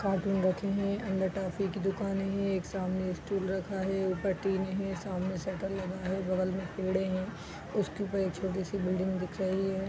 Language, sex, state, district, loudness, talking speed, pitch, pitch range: Hindi, female, Bihar, East Champaran, -33 LUFS, 220 wpm, 190 Hz, 185-195 Hz